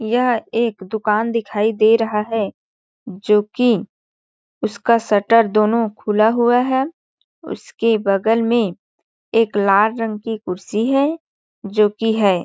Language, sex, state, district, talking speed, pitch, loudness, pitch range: Hindi, female, Chhattisgarh, Balrampur, 130 wpm, 220 Hz, -18 LUFS, 210-230 Hz